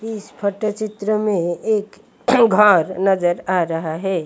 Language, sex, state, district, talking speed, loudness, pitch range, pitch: Hindi, female, Odisha, Malkangiri, 140 wpm, -18 LUFS, 180-215 Hz, 200 Hz